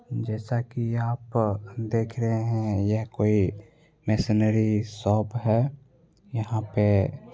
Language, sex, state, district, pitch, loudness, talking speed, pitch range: Hindi, male, Bihar, Begusarai, 110 Hz, -26 LUFS, 115 wpm, 105-120 Hz